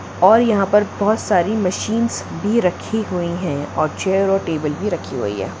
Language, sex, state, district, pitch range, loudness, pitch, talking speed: Hindi, female, Jharkhand, Jamtara, 155-215 Hz, -18 LUFS, 195 Hz, 190 wpm